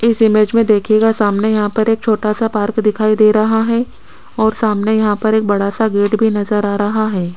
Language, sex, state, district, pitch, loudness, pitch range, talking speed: Hindi, female, Rajasthan, Jaipur, 215 Hz, -14 LUFS, 210-220 Hz, 230 wpm